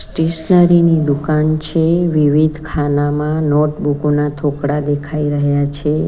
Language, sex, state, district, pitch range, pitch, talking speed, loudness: Gujarati, female, Gujarat, Valsad, 145-160 Hz, 150 Hz, 120 wpm, -15 LUFS